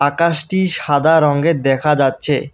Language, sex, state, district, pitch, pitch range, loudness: Bengali, male, West Bengal, Alipurduar, 150 Hz, 140-165 Hz, -14 LUFS